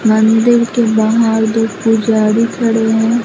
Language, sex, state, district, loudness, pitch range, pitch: Hindi, female, Bihar, Katihar, -12 LUFS, 220-230 Hz, 225 Hz